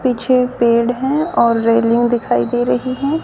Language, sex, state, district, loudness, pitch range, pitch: Hindi, female, Haryana, Charkhi Dadri, -15 LUFS, 230-255 Hz, 240 Hz